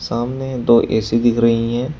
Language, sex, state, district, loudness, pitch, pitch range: Hindi, male, Uttar Pradesh, Shamli, -17 LUFS, 120 Hz, 115-125 Hz